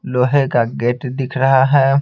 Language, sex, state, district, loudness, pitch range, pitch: Hindi, male, Bihar, Patna, -16 LUFS, 125-135 Hz, 130 Hz